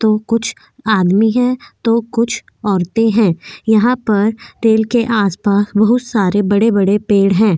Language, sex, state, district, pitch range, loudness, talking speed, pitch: Hindi, female, Goa, North and South Goa, 205-230 Hz, -14 LUFS, 160 wpm, 220 Hz